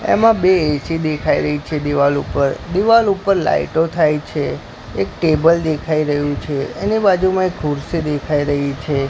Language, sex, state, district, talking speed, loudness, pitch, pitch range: Gujarati, male, Gujarat, Gandhinagar, 165 wpm, -17 LUFS, 155 Hz, 145-175 Hz